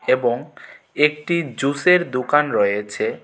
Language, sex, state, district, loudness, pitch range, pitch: Bengali, male, Tripura, West Tripura, -19 LUFS, 125-155 Hz, 145 Hz